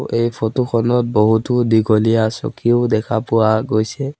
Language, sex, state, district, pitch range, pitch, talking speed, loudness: Assamese, male, Assam, Sonitpur, 110-120 Hz, 115 Hz, 130 wpm, -16 LUFS